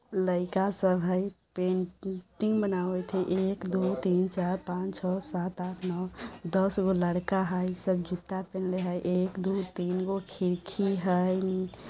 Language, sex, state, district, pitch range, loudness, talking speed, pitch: Hindi, female, Bihar, Vaishali, 180-190 Hz, -30 LUFS, 155 wpm, 185 Hz